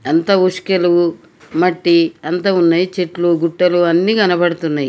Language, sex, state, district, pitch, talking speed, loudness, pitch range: Telugu, female, Telangana, Nalgonda, 175 Hz, 110 wpm, -15 LUFS, 170-180 Hz